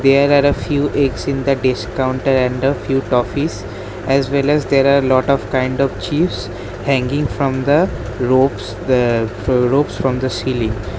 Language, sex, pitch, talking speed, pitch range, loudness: English, male, 130 Hz, 175 wpm, 120-140 Hz, -16 LUFS